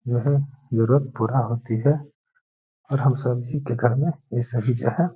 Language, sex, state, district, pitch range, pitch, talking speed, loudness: Hindi, male, Bihar, Gaya, 120-145 Hz, 135 Hz, 185 wpm, -23 LUFS